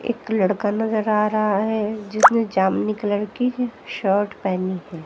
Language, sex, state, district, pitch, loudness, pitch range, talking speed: Hindi, female, Haryana, Jhajjar, 210 Hz, -21 LUFS, 195-220 Hz, 155 wpm